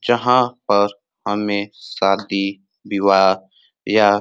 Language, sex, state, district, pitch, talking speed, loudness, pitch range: Hindi, male, Uttar Pradesh, Ghazipur, 100 Hz, 100 wpm, -18 LUFS, 100-105 Hz